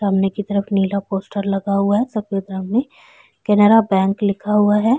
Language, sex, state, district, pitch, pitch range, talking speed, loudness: Hindi, female, Chhattisgarh, Korba, 200 Hz, 195-210 Hz, 195 wpm, -18 LUFS